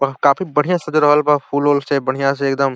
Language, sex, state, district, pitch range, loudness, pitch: Bhojpuri, male, Uttar Pradesh, Deoria, 140-150 Hz, -16 LUFS, 145 Hz